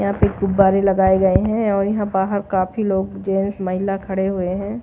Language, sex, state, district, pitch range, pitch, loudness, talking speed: Hindi, female, Odisha, Malkangiri, 190-200 Hz, 195 Hz, -19 LUFS, 200 wpm